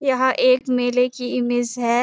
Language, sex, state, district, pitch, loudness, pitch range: Hindi, female, Uttarakhand, Uttarkashi, 250 Hz, -19 LUFS, 245-255 Hz